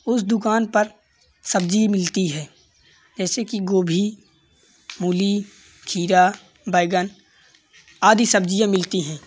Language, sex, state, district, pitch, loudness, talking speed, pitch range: Hindi, male, Uttar Pradesh, Varanasi, 195 Hz, -20 LUFS, 105 wpm, 180-215 Hz